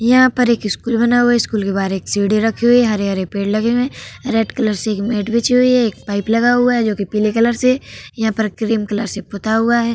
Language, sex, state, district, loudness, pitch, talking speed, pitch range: Hindi, female, Uttar Pradesh, Hamirpur, -16 LUFS, 225 Hz, 270 wpm, 210-240 Hz